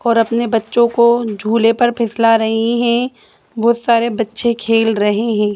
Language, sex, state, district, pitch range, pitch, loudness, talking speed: Hindi, female, Bihar, Jahanabad, 225-235 Hz, 230 Hz, -15 LUFS, 160 wpm